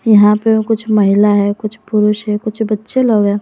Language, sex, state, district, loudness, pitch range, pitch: Hindi, female, Jharkhand, Garhwa, -13 LUFS, 210-220 Hz, 210 Hz